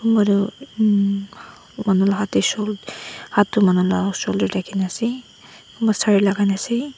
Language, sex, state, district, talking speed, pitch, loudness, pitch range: Nagamese, female, Nagaland, Dimapur, 170 wpm, 200 Hz, -20 LUFS, 195-220 Hz